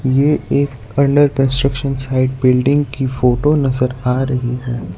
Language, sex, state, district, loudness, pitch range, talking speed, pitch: Hindi, male, Gujarat, Valsad, -16 LUFS, 125-140 Hz, 145 wpm, 130 Hz